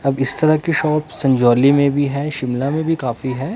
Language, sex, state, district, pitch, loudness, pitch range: Hindi, male, Himachal Pradesh, Shimla, 140 Hz, -17 LUFS, 130-155 Hz